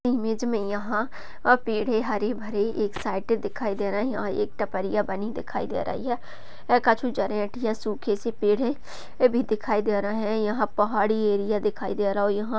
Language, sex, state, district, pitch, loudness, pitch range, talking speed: Hindi, female, Maharashtra, Sindhudurg, 215 Hz, -26 LUFS, 205-230 Hz, 185 wpm